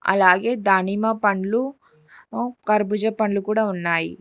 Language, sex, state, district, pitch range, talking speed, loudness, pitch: Telugu, female, Telangana, Hyderabad, 190-220 Hz, 100 wpm, -21 LUFS, 210 Hz